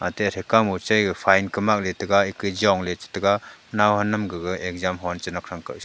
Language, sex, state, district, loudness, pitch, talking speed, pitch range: Wancho, male, Arunachal Pradesh, Longding, -22 LUFS, 95 Hz, 185 wpm, 90-105 Hz